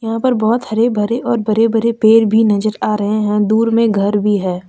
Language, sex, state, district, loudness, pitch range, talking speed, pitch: Hindi, female, Jharkhand, Deoghar, -14 LUFS, 210-230 Hz, 245 wpm, 220 Hz